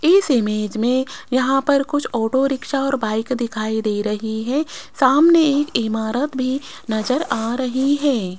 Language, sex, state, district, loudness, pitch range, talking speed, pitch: Hindi, female, Rajasthan, Jaipur, -19 LUFS, 220-275 Hz, 155 wpm, 255 Hz